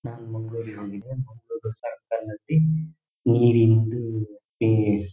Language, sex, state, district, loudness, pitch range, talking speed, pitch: Kannada, male, Karnataka, Shimoga, -24 LUFS, 110-130 Hz, 105 wpm, 115 Hz